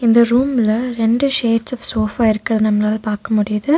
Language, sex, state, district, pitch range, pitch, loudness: Tamil, female, Tamil Nadu, Nilgiris, 215-240 Hz, 225 Hz, -16 LUFS